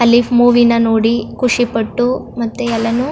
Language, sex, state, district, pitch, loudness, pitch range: Kannada, female, Karnataka, Chamarajanagar, 240 Hz, -14 LUFS, 230-245 Hz